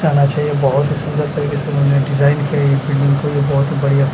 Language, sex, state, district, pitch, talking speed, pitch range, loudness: Hindi, male, Punjab, Kapurthala, 145 Hz, 220 wpm, 140-150 Hz, -16 LUFS